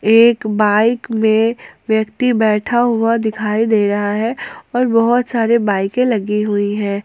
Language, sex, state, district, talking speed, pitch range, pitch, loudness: Hindi, female, Jharkhand, Ranchi, 145 wpm, 210-235 Hz, 220 Hz, -15 LUFS